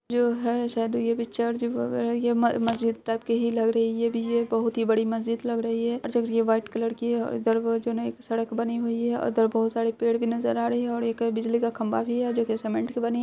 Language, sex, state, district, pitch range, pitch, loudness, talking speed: Hindi, female, Bihar, Purnia, 230-235 Hz, 230 Hz, -26 LUFS, 280 wpm